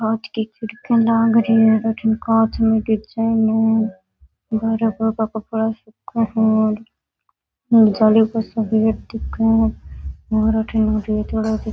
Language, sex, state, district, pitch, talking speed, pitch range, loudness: Rajasthani, female, Rajasthan, Nagaur, 220 Hz, 85 wpm, 220-225 Hz, -18 LUFS